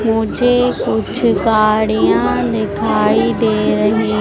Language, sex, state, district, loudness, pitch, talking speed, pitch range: Hindi, female, Madhya Pradesh, Dhar, -15 LUFS, 220 Hz, 85 wpm, 215-225 Hz